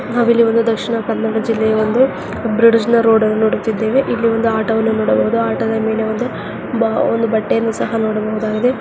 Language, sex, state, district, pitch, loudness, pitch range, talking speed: Kannada, female, Karnataka, Dakshina Kannada, 225 Hz, -16 LUFS, 220-230 Hz, 145 wpm